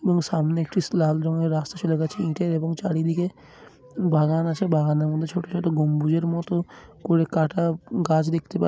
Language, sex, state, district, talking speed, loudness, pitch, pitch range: Bengali, male, West Bengal, Dakshin Dinajpur, 175 wpm, -24 LUFS, 165 Hz, 160-175 Hz